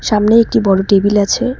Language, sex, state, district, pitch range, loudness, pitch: Bengali, female, West Bengal, Cooch Behar, 200-230 Hz, -12 LUFS, 210 Hz